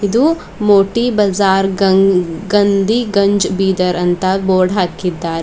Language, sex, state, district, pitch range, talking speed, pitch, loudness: Kannada, female, Karnataka, Bidar, 185-205 Hz, 110 wpm, 195 Hz, -14 LUFS